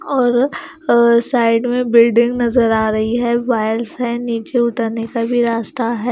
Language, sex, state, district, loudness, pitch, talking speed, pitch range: Hindi, female, Himachal Pradesh, Shimla, -16 LUFS, 235 Hz, 155 wpm, 230-240 Hz